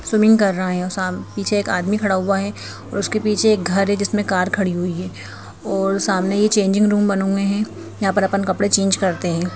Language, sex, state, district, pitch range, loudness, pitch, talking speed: Hindi, female, Madhya Pradesh, Bhopal, 185-205 Hz, -19 LUFS, 195 Hz, 240 wpm